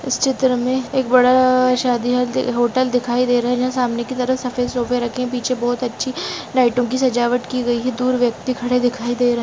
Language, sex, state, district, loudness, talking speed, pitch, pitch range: Angika, female, Bihar, Madhepura, -18 LUFS, 225 wpm, 250 Hz, 245-255 Hz